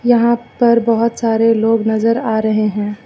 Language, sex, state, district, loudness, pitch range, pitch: Hindi, female, Uttar Pradesh, Lucknow, -14 LUFS, 220-235 Hz, 230 Hz